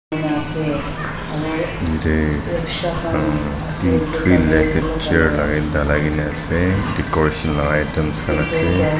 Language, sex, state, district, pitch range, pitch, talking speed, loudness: Nagamese, male, Nagaland, Dimapur, 75-100 Hz, 80 Hz, 35 wpm, -19 LUFS